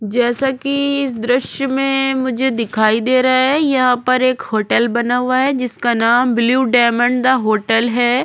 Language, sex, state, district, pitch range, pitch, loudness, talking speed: Hindi, female, Chhattisgarh, Korba, 235-265 Hz, 250 Hz, -15 LUFS, 175 wpm